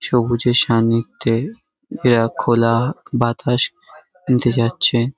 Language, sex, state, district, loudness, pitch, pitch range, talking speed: Bengali, male, West Bengal, Kolkata, -18 LUFS, 120 Hz, 115-130 Hz, 80 wpm